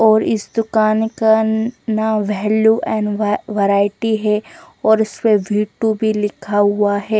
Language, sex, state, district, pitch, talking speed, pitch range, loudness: Hindi, female, Chandigarh, Chandigarh, 215 Hz, 140 wpm, 210-220 Hz, -17 LUFS